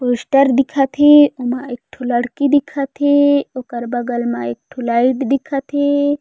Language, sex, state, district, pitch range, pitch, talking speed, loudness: Chhattisgarhi, female, Chhattisgarh, Raigarh, 245-285 Hz, 265 Hz, 145 wpm, -16 LUFS